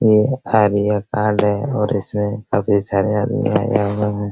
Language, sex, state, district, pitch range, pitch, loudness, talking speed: Hindi, male, Bihar, Araria, 105-110 Hz, 105 Hz, -18 LUFS, 150 wpm